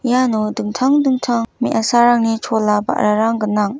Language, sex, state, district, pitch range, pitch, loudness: Garo, female, Meghalaya, West Garo Hills, 215-245 Hz, 225 Hz, -16 LUFS